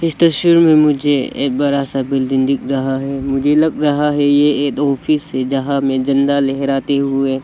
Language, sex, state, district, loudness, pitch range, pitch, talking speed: Hindi, male, Arunachal Pradesh, Lower Dibang Valley, -15 LUFS, 135-145 Hz, 140 Hz, 195 wpm